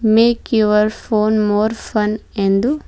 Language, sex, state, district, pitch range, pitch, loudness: Kannada, female, Karnataka, Bidar, 210-225 Hz, 215 Hz, -16 LUFS